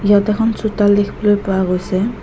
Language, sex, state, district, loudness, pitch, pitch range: Assamese, female, Assam, Kamrup Metropolitan, -16 LUFS, 205 Hz, 195-210 Hz